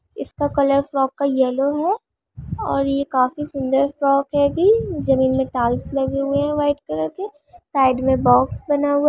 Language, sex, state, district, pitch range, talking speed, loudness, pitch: Hindi, female, Bihar, Vaishali, 265-290 Hz, 185 wpm, -19 LUFS, 275 Hz